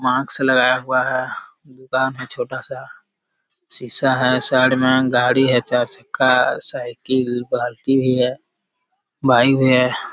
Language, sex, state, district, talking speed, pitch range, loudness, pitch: Hindi, male, Bihar, Jamui, 130 wpm, 125-135 Hz, -17 LUFS, 130 Hz